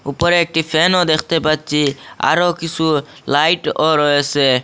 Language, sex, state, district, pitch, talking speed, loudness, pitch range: Bengali, male, Assam, Hailakandi, 155 Hz, 115 wpm, -16 LUFS, 145-165 Hz